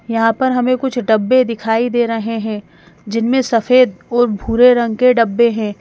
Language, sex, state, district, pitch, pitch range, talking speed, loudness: Hindi, female, Madhya Pradesh, Bhopal, 230 Hz, 225-250 Hz, 175 wpm, -14 LUFS